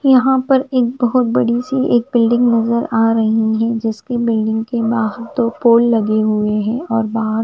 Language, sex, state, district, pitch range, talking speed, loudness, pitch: Hindi, female, Punjab, Fazilka, 225-245 Hz, 160 wpm, -15 LUFS, 230 Hz